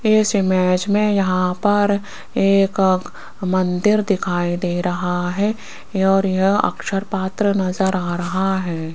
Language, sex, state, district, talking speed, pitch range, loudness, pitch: Hindi, female, Rajasthan, Jaipur, 125 wpm, 180-200 Hz, -19 LUFS, 190 Hz